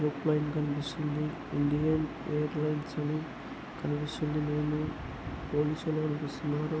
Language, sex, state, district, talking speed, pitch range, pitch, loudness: Telugu, male, Andhra Pradesh, Anantapur, 105 wpm, 150-155 Hz, 150 Hz, -33 LUFS